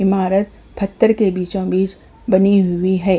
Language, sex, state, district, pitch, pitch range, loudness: Hindi, female, Uttar Pradesh, Hamirpur, 195 Hz, 185-200 Hz, -17 LUFS